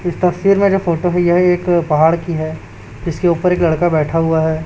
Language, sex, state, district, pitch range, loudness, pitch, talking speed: Hindi, male, Chhattisgarh, Raipur, 160-180 Hz, -15 LUFS, 170 Hz, 230 wpm